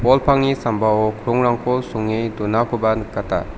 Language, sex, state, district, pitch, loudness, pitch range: Garo, male, Meghalaya, South Garo Hills, 115 Hz, -19 LUFS, 110-125 Hz